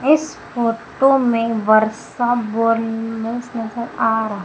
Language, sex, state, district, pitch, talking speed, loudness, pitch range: Hindi, female, Madhya Pradesh, Umaria, 230 Hz, 95 wpm, -19 LUFS, 225-240 Hz